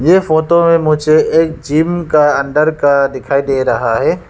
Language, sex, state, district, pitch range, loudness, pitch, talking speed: Hindi, male, Arunachal Pradesh, Lower Dibang Valley, 140-165 Hz, -12 LUFS, 155 Hz, 180 wpm